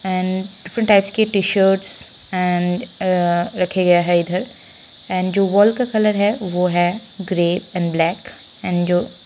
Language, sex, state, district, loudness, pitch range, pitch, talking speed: Hindi, female, Bihar, Saran, -18 LUFS, 180-200 Hz, 185 Hz, 155 wpm